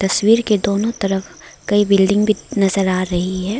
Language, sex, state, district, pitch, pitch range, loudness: Hindi, female, Arunachal Pradesh, Lower Dibang Valley, 200 Hz, 190-210 Hz, -17 LUFS